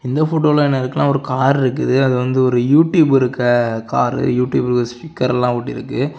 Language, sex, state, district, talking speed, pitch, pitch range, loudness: Tamil, male, Tamil Nadu, Kanyakumari, 175 wpm, 130 Hz, 125-140 Hz, -16 LUFS